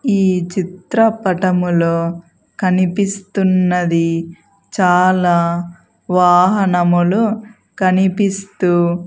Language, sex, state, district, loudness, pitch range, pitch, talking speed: Telugu, female, Andhra Pradesh, Sri Satya Sai, -15 LUFS, 175-195 Hz, 185 Hz, 40 wpm